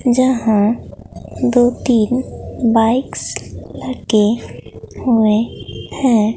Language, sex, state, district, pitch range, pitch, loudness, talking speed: Hindi, female, Bihar, Katihar, 220-250 Hz, 235 Hz, -16 LUFS, 65 wpm